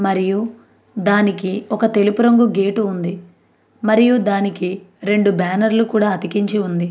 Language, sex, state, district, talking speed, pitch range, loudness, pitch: Telugu, female, Andhra Pradesh, Anantapur, 130 wpm, 190-215 Hz, -17 LUFS, 205 Hz